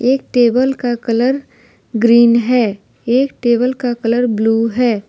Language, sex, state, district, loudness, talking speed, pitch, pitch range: Hindi, female, Jharkhand, Deoghar, -14 LUFS, 140 wpm, 240 Hz, 230-250 Hz